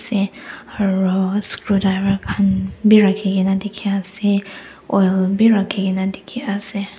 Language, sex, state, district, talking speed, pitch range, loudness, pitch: Nagamese, female, Nagaland, Dimapur, 130 wpm, 195-205 Hz, -18 LUFS, 200 Hz